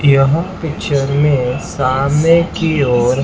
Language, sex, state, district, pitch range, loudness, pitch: Hindi, male, Maharashtra, Mumbai Suburban, 135-160 Hz, -14 LUFS, 140 Hz